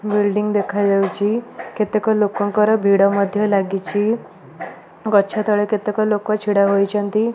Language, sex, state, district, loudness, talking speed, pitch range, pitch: Odia, female, Odisha, Malkangiri, -18 LUFS, 115 wpm, 200-215 Hz, 210 Hz